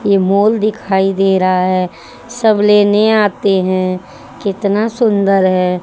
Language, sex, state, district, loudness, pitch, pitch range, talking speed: Hindi, female, Haryana, Charkhi Dadri, -13 LUFS, 195 Hz, 185-210 Hz, 135 wpm